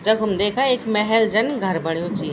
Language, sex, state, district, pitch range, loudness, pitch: Garhwali, female, Uttarakhand, Tehri Garhwal, 190-225 Hz, -20 LUFS, 210 Hz